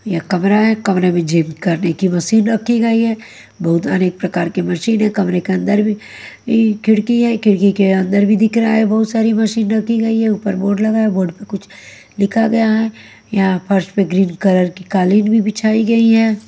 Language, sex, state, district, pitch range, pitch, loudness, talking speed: Hindi, female, Haryana, Jhajjar, 185-220 Hz, 205 Hz, -15 LUFS, 210 wpm